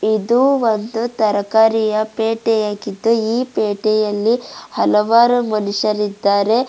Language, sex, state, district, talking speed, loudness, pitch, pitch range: Kannada, female, Karnataka, Bidar, 90 wpm, -16 LUFS, 220 Hz, 210-230 Hz